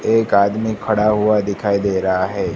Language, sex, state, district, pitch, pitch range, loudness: Hindi, male, Gujarat, Gandhinagar, 105 Hz, 100-110 Hz, -17 LUFS